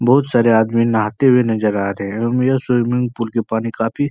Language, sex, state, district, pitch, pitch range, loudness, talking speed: Hindi, male, Uttar Pradesh, Etah, 115 Hz, 110-125 Hz, -17 LUFS, 250 wpm